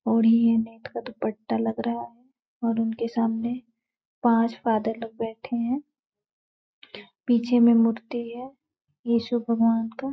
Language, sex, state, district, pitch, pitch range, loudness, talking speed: Hindi, female, Chhattisgarh, Balrampur, 230 Hz, 225-240 Hz, -25 LUFS, 140 wpm